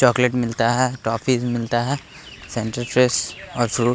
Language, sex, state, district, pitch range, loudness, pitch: Hindi, male, Bihar, West Champaran, 115-125 Hz, -21 LUFS, 120 Hz